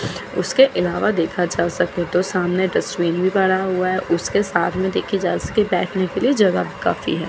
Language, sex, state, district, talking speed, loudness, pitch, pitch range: Hindi, female, Chandigarh, Chandigarh, 205 wpm, -19 LUFS, 185 Hz, 175-190 Hz